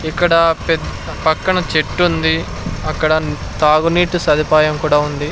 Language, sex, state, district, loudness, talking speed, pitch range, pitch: Telugu, male, Andhra Pradesh, Sri Satya Sai, -15 LUFS, 115 wpm, 155-165 Hz, 155 Hz